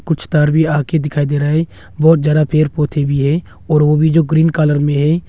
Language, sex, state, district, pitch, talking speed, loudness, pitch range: Hindi, male, Arunachal Pradesh, Longding, 150 Hz, 250 wpm, -14 LUFS, 145-160 Hz